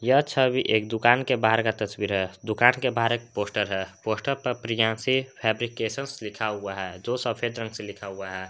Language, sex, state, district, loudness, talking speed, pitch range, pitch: Hindi, male, Jharkhand, Garhwa, -26 LUFS, 205 wpm, 105-125 Hz, 110 Hz